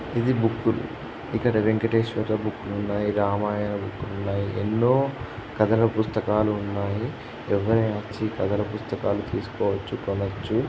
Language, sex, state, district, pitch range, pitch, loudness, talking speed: Telugu, male, Andhra Pradesh, Guntur, 100-115 Hz, 110 Hz, -25 LUFS, 120 wpm